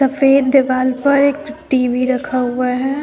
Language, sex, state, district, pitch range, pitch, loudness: Hindi, female, Jharkhand, Deoghar, 255-280 Hz, 265 Hz, -15 LUFS